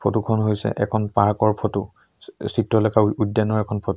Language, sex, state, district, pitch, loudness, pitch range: Assamese, male, Assam, Sonitpur, 105 Hz, -21 LUFS, 100-110 Hz